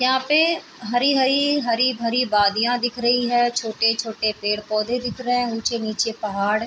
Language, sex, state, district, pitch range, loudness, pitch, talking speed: Hindi, female, Chhattisgarh, Raigarh, 220-250 Hz, -21 LUFS, 240 Hz, 190 wpm